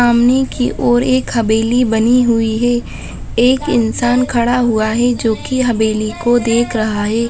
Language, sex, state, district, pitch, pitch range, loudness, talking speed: Hindi, female, Bihar, Jamui, 240 Hz, 225-245 Hz, -14 LUFS, 155 wpm